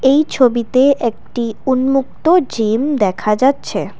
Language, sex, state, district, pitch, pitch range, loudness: Bengali, female, Assam, Kamrup Metropolitan, 260 Hz, 235-275 Hz, -15 LUFS